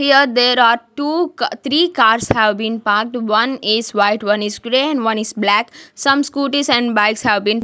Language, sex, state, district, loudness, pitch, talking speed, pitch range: English, female, Maharashtra, Gondia, -15 LUFS, 230 Hz, 205 wpm, 210-275 Hz